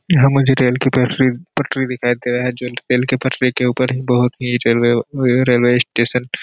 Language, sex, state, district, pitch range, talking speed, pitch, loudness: Hindi, male, Bihar, Kishanganj, 125-130 Hz, 215 wpm, 125 Hz, -16 LUFS